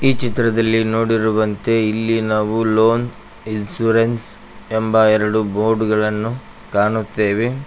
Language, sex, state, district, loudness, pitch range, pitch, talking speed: Kannada, male, Karnataka, Koppal, -17 LUFS, 110-115 Hz, 110 Hz, 95 wpm